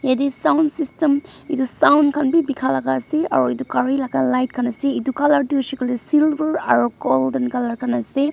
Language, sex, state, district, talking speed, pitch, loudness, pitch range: Nagamese, female, Nagaland, Dimapur, 200 wpm, 275 Hz, -19 LUFS, 245-300 Hz